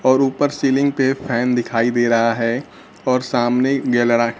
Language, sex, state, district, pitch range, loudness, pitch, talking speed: Hindi, male, Bihar, Kaimur, 120-135 Hz, -18 LUFS, 125 Hz, 165 wpm